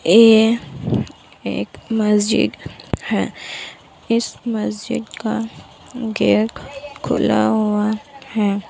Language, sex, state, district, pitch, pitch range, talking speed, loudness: Hindi, female, Bihar, Kishanganj, 220 Hz, 210-230 Hz, 75 wpm, -19 LUFS